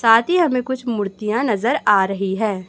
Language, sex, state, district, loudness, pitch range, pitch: Hindi, female, Chhattisgarh, Raipur, -18 LUFS, 195-250 Hz, 220 Hz